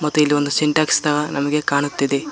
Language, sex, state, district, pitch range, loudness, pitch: Kannada, male, Karnataka, Koppal, 140-150 Hz, -18 LUFS, 150 Hz